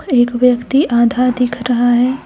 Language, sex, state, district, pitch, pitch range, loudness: Hindi, female, Jharkhand, Deoghar, 245 Hz, 240-250 Hz, -14 LUFS